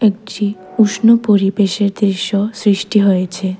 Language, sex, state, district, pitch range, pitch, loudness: Bengali, female, Tripura, West Tripura, 195-210 Hz, 205 Hz, -15 LUFS